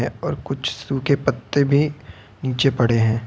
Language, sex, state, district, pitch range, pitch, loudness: Hindi, male, Uttar Pradesh, Lucknow, 115-140 Hz, 135 Hz, -21 LUFS